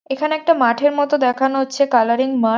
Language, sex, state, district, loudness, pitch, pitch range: Bengali, female, West Bengal, Jhargram, -17 LUFS, 270 Hz, 245-290 Hz